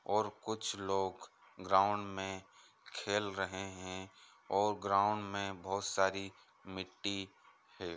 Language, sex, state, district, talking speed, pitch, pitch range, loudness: Hindi, male, Andhra Pradesh, Chittoor, 235 wpm, 95 Hz, 95-100 Hz, -37 LUFS